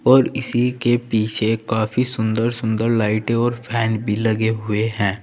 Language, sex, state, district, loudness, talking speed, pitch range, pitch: Hindi, male, Uttar Pradesh, Saharanpur, -20 LUFS, 160 wpm, 110-120 Hz, 110 Hz